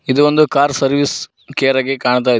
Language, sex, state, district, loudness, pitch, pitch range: Kannada, male, Karnataka, Koppal, -15 LUFS, 140 Hz, 130-145 Hz